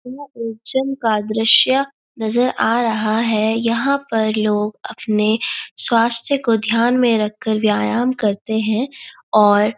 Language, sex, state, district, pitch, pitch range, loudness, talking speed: Hindi, female, Uttarakhand, Uttarkashi, 230 Hz, 215-250 Hz, -18 LUFS, 140 wpm